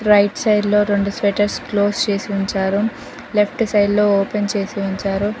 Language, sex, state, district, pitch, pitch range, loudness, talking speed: Telugu, female, Telangana, Mahabubabad, 205 Hz, 200-210 Hz, -18 LUFS, 155 wpm